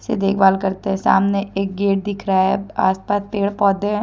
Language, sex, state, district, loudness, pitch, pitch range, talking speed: Hindi, female, Jharkhand, Deoghar, -18 LUFS, 195 Hz, 195-205 Hz, 210 wpm